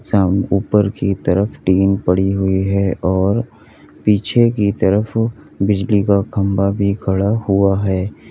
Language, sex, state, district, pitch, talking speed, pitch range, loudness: Hindi, male, Uttar Pradesh, Lalitpur, 100 Hz, 145 wpm, 95-105 Hz, -16 LUFS